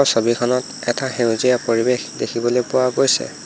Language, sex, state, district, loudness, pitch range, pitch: Assamese, male, Assam, Hailakandi, -19 LUFS, 120-125 Hz, 125 Hz